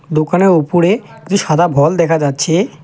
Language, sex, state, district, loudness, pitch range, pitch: Bengali, male, West Bengal, Alipurduar, -13 LUFS, 155-180 Hz, 170 Hz